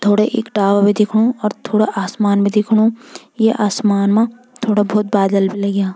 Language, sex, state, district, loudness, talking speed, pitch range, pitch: Garhwali, female, Uttarakhand, Tehri Garhwal, -16 LUFS, 180 wpm, 200-225 Hz, 210 Hz